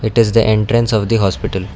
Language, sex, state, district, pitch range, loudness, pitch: English, male, Karnataka, Bangalore, 100-115 Hz, -14 LUFS, 110 Hz